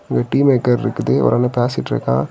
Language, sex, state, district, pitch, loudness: Tamil, male, Tamil Nadu, Kanyakumari, 120 Hz, -17 LUFS